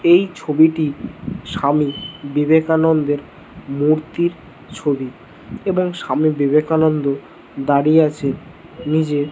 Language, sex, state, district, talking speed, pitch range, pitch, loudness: Bengali, male, West Bengal, North 24 Parganas, 85 wpm, 145-160 Hz, 155 Hz, -18 LUFS